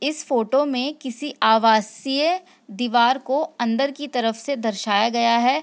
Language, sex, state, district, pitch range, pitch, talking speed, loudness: Hindi, female, Bihar, Sitamarhi, 230-280 Hz, 255 Hz, 150 wpm, -21 LUFS